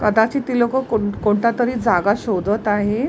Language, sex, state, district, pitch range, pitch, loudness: Marathi, female, Maharashtra, Mumbai Suburban, 205-240 Hz, 220 Hz, -19 LUFS